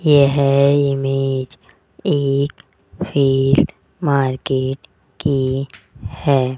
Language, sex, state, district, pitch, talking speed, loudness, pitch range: Hindi, male, Rajasthan, Jaipur, 135 Hz, 65 wpm, -18 LUFS, 130-140 Hz